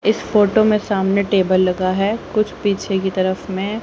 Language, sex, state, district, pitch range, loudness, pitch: Hindi, female, Haryana, Rohtak, 190-215 Hz, -18 LUFS, 200 Hz